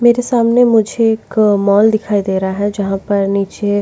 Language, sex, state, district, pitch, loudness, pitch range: Hindi, female, Goa, North and South Goa, 205 Hz, -14 LUFS, 200-225 Hz